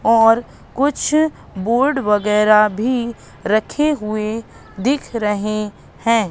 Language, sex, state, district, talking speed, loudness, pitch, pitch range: Hindi, female, Madhya Pradesh, Katni, 95 wpm, -17 LUFS, 225 Hz, 210-255 Hz